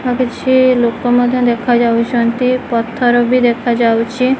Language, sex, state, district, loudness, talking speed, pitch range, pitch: Odia, female, Odisha, Khordha, -13 LUFS, 125 wpm, 235-255 Hz, 245 Hz